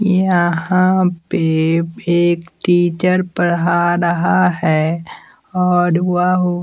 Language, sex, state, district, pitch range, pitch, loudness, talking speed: Hindi, male, Bihar, West Champaran, 170-180 Hz, 175 Hz, -15 LUFS, 80 wpm